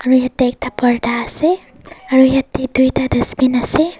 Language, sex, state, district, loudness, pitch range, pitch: Nagamese, female, Nagaland, Dimapur, -15 LUFS, 250-270 Hz, 260 Hz